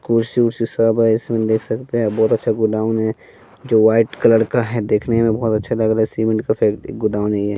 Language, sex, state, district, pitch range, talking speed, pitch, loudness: Hindi, male, Bihar, West Champaran, 110-115 Hz, 245 wpm, 110 Hz, -17 LUFS